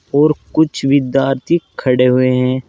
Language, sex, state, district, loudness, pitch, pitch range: Hindi, male, Uttar Pradesh, Saharanpur, -14 LUFS, 135 Hz, 130-150 Hz